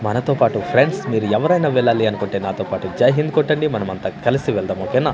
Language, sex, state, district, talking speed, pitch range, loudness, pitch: Telugu, male, Andhra Pradesh, Manyam, 185 wpm, 100-150 Hz, -18 LUFS, 110 Hz